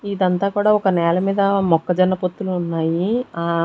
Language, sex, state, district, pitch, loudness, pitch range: Telugu, female, Andhra Pradesh, Sri Satya Sai, 185 Hz, -19 LUFS, 170-200 Hz